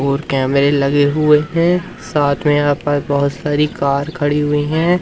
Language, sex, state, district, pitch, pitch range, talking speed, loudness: Hindi, male, Madhya Pradesh, Umaria, 145 Hz, 140-150 Hz, 180 wpm, -15 LUFS